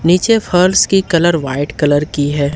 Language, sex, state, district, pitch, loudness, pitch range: Hindi, male, Jharkhand, Ranchi, 165 Hz, -13 LUFS, 145-185 Hz